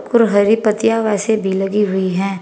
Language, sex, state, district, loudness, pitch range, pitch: Hindi, female, Uttar Pradesh, Saharanpur, -16 LUFS, 195-220 Hz, 210 Hz